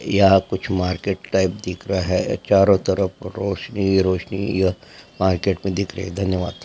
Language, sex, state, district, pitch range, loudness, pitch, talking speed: Hindi, male, Andhra Pradesh, Chittoor, 95-100 Hz, -20 LUFS, 95 Hz, 170 wpm